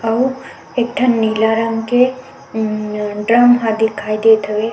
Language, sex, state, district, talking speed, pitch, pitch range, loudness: Chhattisgarhi, female, Chhattisgarh, Sukma, 150 wpm, 225 Hz, 220-245 Hz, -15 LUFS